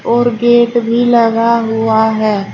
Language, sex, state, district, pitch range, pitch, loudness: Hindi, female, Uttar Pradesh, Shamli, 220-240 Hz, 230 Hz, -12 LUFS